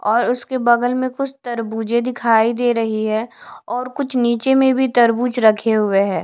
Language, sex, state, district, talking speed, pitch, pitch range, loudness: Hindi, female, Delhi, New Delhi, 185 wpm, 240 Hz, 225-255 Hz, -17 LUFS